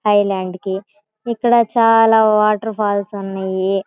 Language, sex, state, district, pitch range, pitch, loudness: Telugu, female, Andhra Pradesh, Guntur, 195-220 Hz, 210 Hz, -16 LUFS